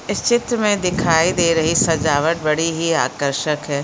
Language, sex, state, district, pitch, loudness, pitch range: Hindi, female, Chhattisgarh, Korba, 165 Hz, -17 LUFS, 150-175 Hz